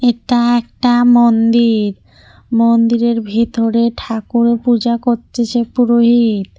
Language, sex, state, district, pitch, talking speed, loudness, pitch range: Bengali, female, West Bengal, Cooch Behar, 235 Hz, 80 wpm, -13 LUFS, 230-240 Hz